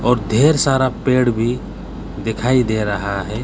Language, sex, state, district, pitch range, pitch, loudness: Hindi, male, West Bengal, Alipurduar, 110-130 Hz, 120 Hz, -17 LUFS